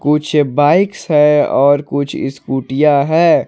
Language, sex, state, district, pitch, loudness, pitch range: Hindi, male, Jharkhand, Ranchi, 145 Hz, -13 LUFS, 140-150 Hz